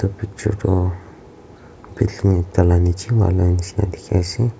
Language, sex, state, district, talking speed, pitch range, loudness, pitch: Nagamese, male, Nagaland, Kohima, 145 wpm, 90-105 Hz, -19 LUFS, 95 Hz